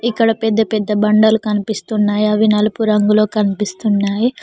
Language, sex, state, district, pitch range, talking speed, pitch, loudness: Telugu, female, Telangana, Mahabubabad, 210-220 Hz, 120 wpm, 215 Hz, -15 LUFS